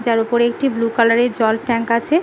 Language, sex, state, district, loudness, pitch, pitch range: Bengali, female, West Bengal, Malda, -17 LUFS, 230 Hz, 230-240 Hz